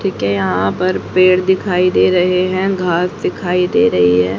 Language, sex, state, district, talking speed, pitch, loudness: Hindi, female, Haryana, Rohtak, 175 wpm, 180 Hz, -14 LUFS